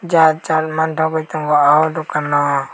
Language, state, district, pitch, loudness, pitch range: Kokborok, Tripura, West Tripura, 155 Hz, -16 LUFS, 150-160 Hz